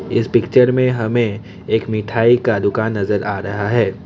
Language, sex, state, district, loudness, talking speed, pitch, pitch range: Hindi, male, Assam, Kamrup Metropolitan, -17 LUFS, 175 wpm, 110 Hz, 100-120 Hz